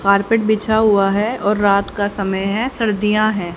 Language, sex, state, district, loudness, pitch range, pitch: Hindi, female, Haryana, Jhajjar, -17 LUFS, 200-220 Hz, 205 Hz